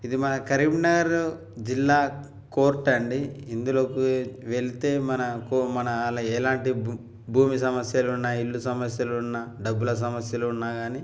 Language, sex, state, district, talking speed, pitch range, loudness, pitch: Telugu, male, Telangana, Karimnagar, 110 wpm, 120-135 Hz, -25 LUFS, 125 Hz